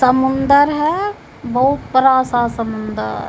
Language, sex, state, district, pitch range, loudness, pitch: Hindi, female, Bihar, Begusarai, 235-280 Hz, -16 LUFS, 260 Hz